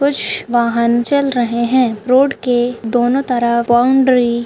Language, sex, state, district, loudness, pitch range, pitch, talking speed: Hindi, female, Rajasthan, Churu, -14 LUFS, 235-260 Hz, 245 Hz, 135 wpm